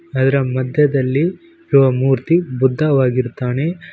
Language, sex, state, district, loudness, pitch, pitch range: Kannada, male, Karnataka, Koppal, -16 LUFS, 135 Hz, 130-155 Hz